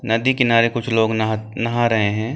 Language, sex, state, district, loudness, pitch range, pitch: Hindi, male, Uttar Pradesh, Jyotiba Phule Nagar, -18 LUFS, 110-120 Hz, 115 Hz